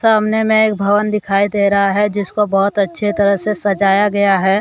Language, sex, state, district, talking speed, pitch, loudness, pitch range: Hindi, male, Jharkhand, Deoghar, 210 wpm, 205 Hz, -15 LUFS, 200-210 Hz